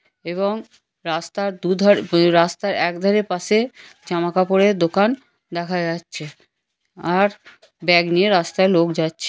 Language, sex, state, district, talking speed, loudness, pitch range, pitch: Bengali, female, West Bengal, Kolkata, 125 wpm, -19 LUFS, 170-200 Hz, 180 Hz